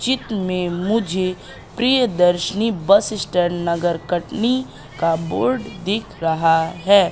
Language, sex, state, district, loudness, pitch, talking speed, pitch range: Hindi, female, Madhya Pradesh, Katni, -19 LUFS, 185 Hz, 110 wpm, 175-220 Hz